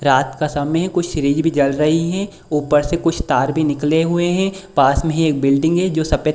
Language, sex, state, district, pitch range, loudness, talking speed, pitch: Hindi, female, Bihar, Supaul, 150-170 Hz, -17 LUFS, 255 wpm, 160 Hz